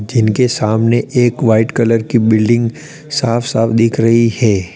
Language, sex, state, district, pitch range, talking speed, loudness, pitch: Hindi, male, Uttar Pradesh, Lalitpur, 110-120 Hz, 150 wpm, -13 LUFS, 115 Hz